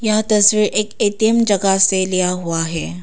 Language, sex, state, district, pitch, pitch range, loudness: Hindi, female, Arunachal Pradesh, Papum Pare, 200 Hz, 180-215 Hz, -15 LUFS